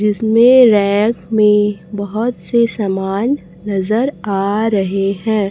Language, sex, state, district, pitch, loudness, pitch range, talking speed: Hindi, female, Chhattisgarh, Raipur, 210 Hz, -15 LUFS, 195-225 Hz, 110 wpm